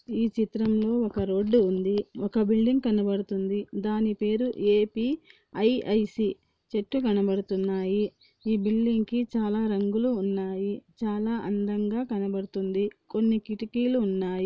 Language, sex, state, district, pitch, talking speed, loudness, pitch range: Telugu, female, Andhra Pradesh, Anantapur, 215 Hz, 110 wpm, -27 LUFS, 200-225 Hz